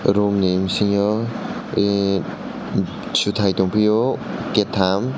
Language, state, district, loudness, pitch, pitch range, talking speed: Kokborok, Tripura, West Tripura, -20 LUFS, 100 Hz, 95-105 Hz, 95 wpm